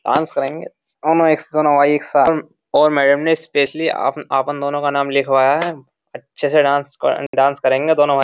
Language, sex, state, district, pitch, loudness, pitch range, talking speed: Hindi, male, Uttar Pradesh, Jyotiba Phule Nagar, 145 Hz, -16 LUFS, 140-155 Hz, 190 wpm